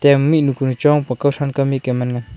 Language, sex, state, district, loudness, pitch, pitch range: Wancho, male, Arunachal Pradesh, Longding, -17 LUFS, 140 Hz, 125-145 Hz